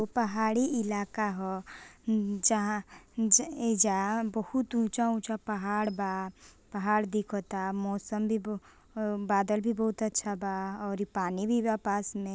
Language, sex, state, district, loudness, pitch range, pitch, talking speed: Bhojpuri, female, Bihar, Gopalganj, -30 LUFS, 200-220 Hz, 210 Hz, 140 wpm